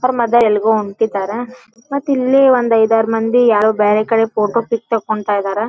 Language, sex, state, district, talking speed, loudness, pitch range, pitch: Kannada, female, Karnataka, Dharwad, 170 wpm, -14 LUFS, 215-240 Hz, 225 Hz